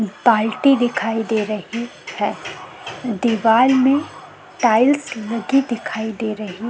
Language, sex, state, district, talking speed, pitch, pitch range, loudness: Hindi, female, Chhattisgarh, Kabirdham, 110 wpm, 230 Hz, 220-255 Hz, -18 LUFS